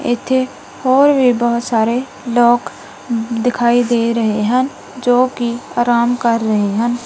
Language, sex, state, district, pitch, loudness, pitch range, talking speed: Punjabi, female, Punjab, Kapurthala, 240 Hz, -15 LUFS, 235-250 Hz, 135 wpm